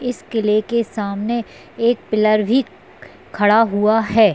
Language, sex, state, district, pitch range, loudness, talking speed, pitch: Hindi, female, Maharashtra, Sindhudurg, 210-235 Hz, -18 LUFS, 140 wpm, 220 Hz